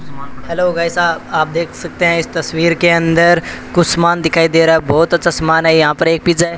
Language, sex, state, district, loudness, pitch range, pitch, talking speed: Hindi, male, Rajasthan, Bikaner, -13 LUFS, 160-170 Hz, 165 Hz, 235 wpm